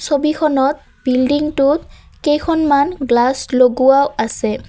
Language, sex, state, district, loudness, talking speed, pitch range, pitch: Assamese, female, Assam, Kamrup Metropolitan, -15 LUFS, 75 wpm, 255-295 Hz, 280 Hz